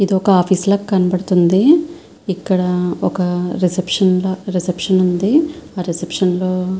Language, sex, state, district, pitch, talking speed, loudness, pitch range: Telugu, female, Andhra Pradesh, Visakhapatnam, 185 Hz, 115 wpm, -16 LUFS, 180-195 Hz